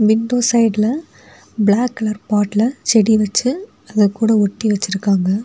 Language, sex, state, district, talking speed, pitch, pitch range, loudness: Tamil, female, Tamil Nadu, Kanyakumari, 120 wpm, 215 Hz, 205-230 Hz, -16 LUFS